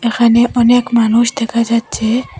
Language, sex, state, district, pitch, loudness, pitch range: Bengali, female, Assam, Hailakandi, 235 Hz, -13 LUFS, 230-240 Hz